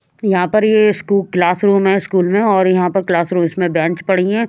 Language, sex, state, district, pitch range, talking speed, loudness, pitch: Hindi, female, Haryana, Rohtak, 180-200 Hz, 215 wpm, -14 LUFS, 190 Hz